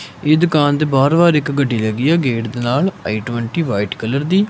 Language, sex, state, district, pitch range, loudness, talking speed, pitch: Punjabi, male, Punjab, Kapurthala, 120-160 Hz, -16 LUFS, 215 wpm, 140 Hz